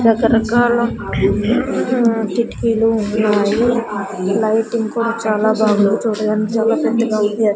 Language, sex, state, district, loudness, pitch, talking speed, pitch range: Telugu, female, Andhra Pradesh, Sri Satya Sai, -16 LUFS, 220 Hz, 95 wpm, 215-230 Hz